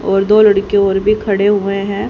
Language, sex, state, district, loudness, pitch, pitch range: Hindi, female, Haryana, Rohtak, -13 LUFS, 200 Hz, 195-210 Hz